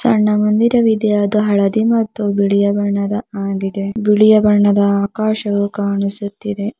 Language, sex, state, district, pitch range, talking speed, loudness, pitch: Kannada, female, Karnataka, Bidar, 200-215 Hz, 105 wpm, -15 LUFS, 205 Hz